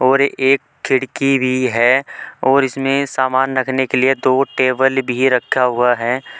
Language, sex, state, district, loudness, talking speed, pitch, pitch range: Hindi, male, Uttar Pradesh, Saharanpur, -16 LUFS, 160 wpm, 130 Hz, 130-135 Hz